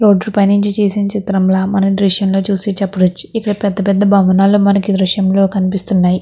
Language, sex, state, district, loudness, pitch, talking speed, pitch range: Telugu, female, Andhra Pradesh, Krishna, -13 LUFS, 195 Hz, 145 wpm, 190-200 Hz